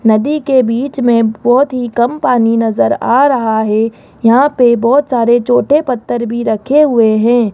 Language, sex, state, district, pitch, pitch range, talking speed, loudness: Hindi, female, Rajasthan, Jaipur, 240 Hz, 230-260 Hz, 175 wpm, -12 LUFS